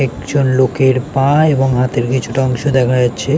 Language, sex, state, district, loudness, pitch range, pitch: Bengali, male, West Bengal, North 24 Parganas, -14 LUFS, 125-135 Hz, 130 Hz